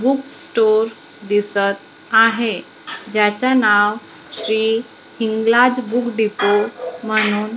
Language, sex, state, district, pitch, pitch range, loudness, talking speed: Marathi, female, Maharashtra, Gondia, 220 Hz, 210-230 Hz, -17 LUFS, 85 wpm